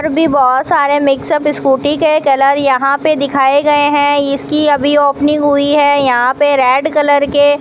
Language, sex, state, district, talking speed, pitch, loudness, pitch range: Hindi, female, Rajasthan, Bikaner, 190 wpm, 285 Hz, -11 LUFS, 275-295 Hz